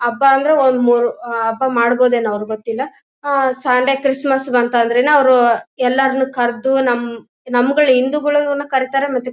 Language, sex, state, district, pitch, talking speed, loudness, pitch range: Kannada, female, Karnataka, Bellary, 255 Hz, 135 wpm, -15 LUFS, 240-270 Hz